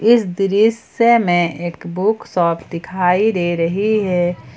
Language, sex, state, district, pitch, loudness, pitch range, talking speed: Hindi, female, Jharkhand, Ranchi, 180 Hz, -17 LUFS, 175-215 Hz, 130 wpm